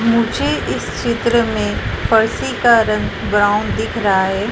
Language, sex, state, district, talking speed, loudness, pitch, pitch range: Hindi, female, Madhya Pradesh, Dhar, 145 wpm, -16 LUFS, 220 Hz, 195-230 Hz